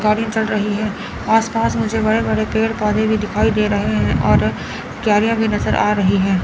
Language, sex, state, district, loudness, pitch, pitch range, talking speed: Hindi, female, Chandigarh, Chandigarh, -17 LUFS, 215 Hz, 210-220 Hz, 215 wpm